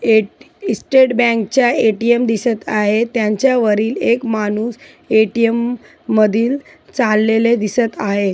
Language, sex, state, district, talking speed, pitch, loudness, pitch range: Marathi, female, Maharashtra, Chandrapur, 110 wpm, 230 Hz, -15 LUFS, 215-240 Hz